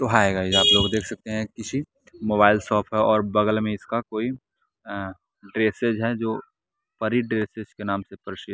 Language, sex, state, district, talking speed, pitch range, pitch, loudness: Hindi, male, Bihar, West Champaran, 180 wpm, 100-115 Hz, 110 Hz, -23 LUFS